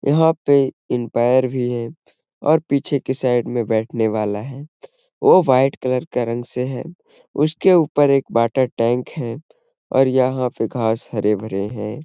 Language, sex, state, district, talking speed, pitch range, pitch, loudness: Hindi, male, Bihar, Gaya, 160 wpm, 115-145 Hz, 130 Hz, -19 LUFS